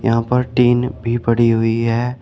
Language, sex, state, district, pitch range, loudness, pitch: Hindi, male, Uttar Pradesh, Shamli, 115-125 Hz, -16 LUFS, 120 Hz